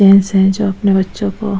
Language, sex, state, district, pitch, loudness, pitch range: Hindi, female, Goa, North and South Goa, 195 Hz, -13 LUFS, 190-205 Hz